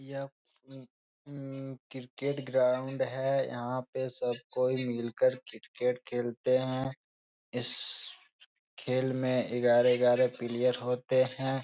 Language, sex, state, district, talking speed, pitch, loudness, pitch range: Hindi, male, Bihar, Jahanabad, 110 wpm, 130 Hz, -31 LUFS, 125-135 Hz